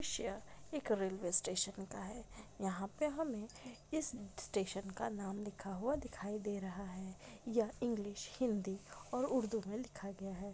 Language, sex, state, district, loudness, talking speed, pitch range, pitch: Maithili, female, Bihar, Saharsa, -42 LUFS, 160 wpm, 195-235 Hz, 205 Hz